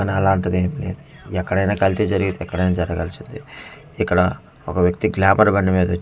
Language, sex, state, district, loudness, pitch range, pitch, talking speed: Telugu, male, Andhra Pradesh, Manyam, -19 LUFS, 90-95 Hz, 95 Hz, 170 wpm